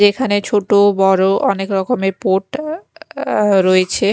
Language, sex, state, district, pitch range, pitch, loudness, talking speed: Bengali, female, Chhattisgarh, Raipur, 195-215 Hz, 200 Hz, -15 LUFS, 145 wpm